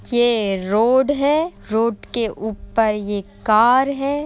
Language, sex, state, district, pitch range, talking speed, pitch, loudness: Hindi, female, Uttar Pradesh, Etah, 215-270 Hz, 125 wpm, 230 Hz, -19 LUFS